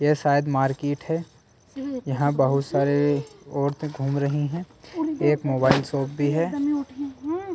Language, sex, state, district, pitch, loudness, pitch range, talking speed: Hindi, male, Delhi, New Delhi, 145 Hz, -24 LUFS, 140-175 Hz, 125 wpm